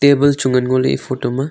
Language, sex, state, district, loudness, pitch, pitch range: Wancho, male, Arunachal Pradesh, Longding, -16 LUFS, 130 Hz, 130-140 Hz